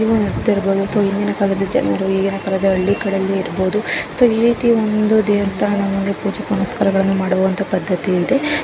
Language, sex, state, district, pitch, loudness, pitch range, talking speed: Kannada, female, Karnataka, Dharwad, 200 Hz, -17 LUFS, 195-215 Hz, 125 wpm